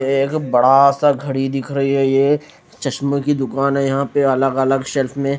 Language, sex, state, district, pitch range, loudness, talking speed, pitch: Hindi, female, Punjab, Fazilka, 135-140 Hz, -17 LUFS, 210 wpm, 135 Hz